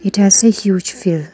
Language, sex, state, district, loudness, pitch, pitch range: English, female, Arunachal Pradesh, Lower Dibang Valley, -13 LUFS, 195 Hz, 185-210 Hz